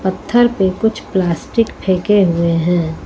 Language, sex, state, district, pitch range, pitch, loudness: Hindi, female, Uttar Pradesh, Lucknow, 175-210 Hz, 190 Hz, -15 LUFS